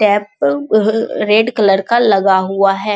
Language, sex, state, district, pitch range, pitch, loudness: Hindi, male, Bihar, Jamui, 195-215 Hz, 205 Hz, -13 LUFS